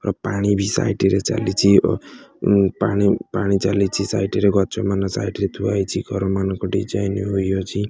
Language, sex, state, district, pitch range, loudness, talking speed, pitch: Odia, male, Odisha, Khordha, 95-100 Hz, -20 LUFS, 165 wpm, 100 Hz